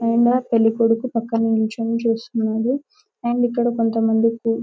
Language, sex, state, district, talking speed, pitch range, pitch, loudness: Telugu, male, Telangana, Karimnagar, 115 wpm, 225-240 Hz, 230 Hz, -20 LUFS